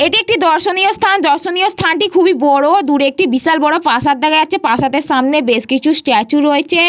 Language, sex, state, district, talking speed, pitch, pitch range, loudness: Bengali, female, West Bengal, Paschim Medinipur, 185 wpm, 310 Hz, 285-360 Hz, -12 LUFS